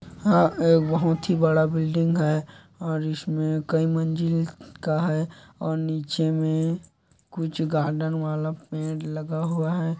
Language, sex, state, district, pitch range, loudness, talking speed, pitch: Hindi, male, Chhattisgarh, Kabirdham, 155-165 Hz, -25 LUFS, 130 wpm, 160 Hz